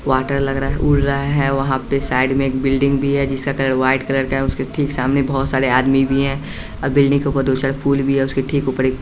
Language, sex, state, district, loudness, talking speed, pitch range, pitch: Hindi, male, Bihar, West Champaran, -18 LUFS, 285 wpm, 135-140 Hz, 135 Hz